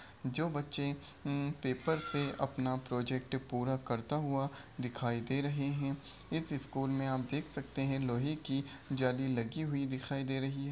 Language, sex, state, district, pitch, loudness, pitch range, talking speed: Hindi, male, Bihar, Begusarai, 135 Hz, -37 LUFS, 130-140 Hz, 155 wpm